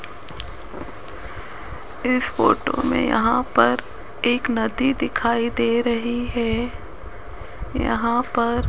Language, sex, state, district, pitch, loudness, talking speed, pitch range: Hindi, female, Rajasthan, Jaipur, 240 Hz, -21 LUFS, 95 wpm, 235-245 Hz